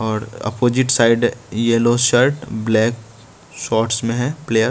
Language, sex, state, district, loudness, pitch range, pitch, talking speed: Hindi, male, Bihar, West Champaran, -17 LUFS, 110-120 Hz, 115 Hz, 130 wpm